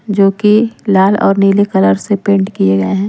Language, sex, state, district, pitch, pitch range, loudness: Hindi, female, Madhya Pradesh, Umaria, 195 Hz, 190-205 Hz, -11 LUFS